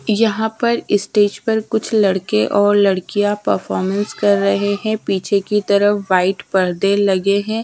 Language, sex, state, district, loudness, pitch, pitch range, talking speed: Hindi, female, Bihar, Patna, -17 LUFS, 205 Hz, 195-215 Hz, 165 wpm